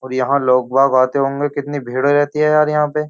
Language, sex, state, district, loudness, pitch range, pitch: Hindi, male, Uttar Pradesh, Jyotiba Phule Nagar, -16 LUFS, 130-150 Hz, 140 Hz